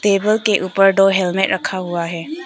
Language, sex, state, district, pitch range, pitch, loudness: Hindi, female, Arunachal Pradesh, Papum Pare, 185-205 Hz, 195 Hz, -16 LUFS